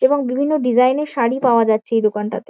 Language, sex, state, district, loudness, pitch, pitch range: Bengali, female, West Bengal, Kolkata, -17 LUFS, 250 Hz, 225-275 Hz